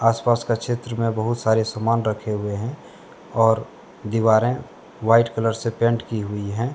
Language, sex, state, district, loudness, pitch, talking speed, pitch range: Hindi, male, Jharkhand, Deoghar, -22 LUFS, 115 Hz, 170 wpm, 110-115 Hz